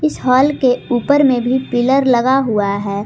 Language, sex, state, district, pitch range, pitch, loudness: Hindi, female, Jharkhand, Garhwa, 240-270 Hz, 255 Hz, -14 LUFS